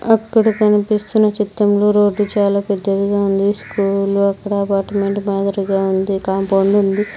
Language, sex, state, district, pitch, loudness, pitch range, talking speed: Telugu, female, Andhra Pradesh, Sri Satya Sai, 200 Hz, -16 LUFS, 195-210 Hz, 115 wpm